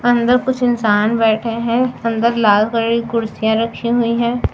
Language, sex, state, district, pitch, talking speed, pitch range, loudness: Hindi, female, Bihar, West Champaran, 230 Hz, 170 wpm, 225-235 Hz, -16 LUFS